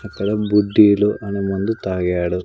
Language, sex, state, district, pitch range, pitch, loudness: Telugu, male, Andhra Pradesh, Sri Satya Sai, 95-105 Hz, 100 Hz, -18 LUFS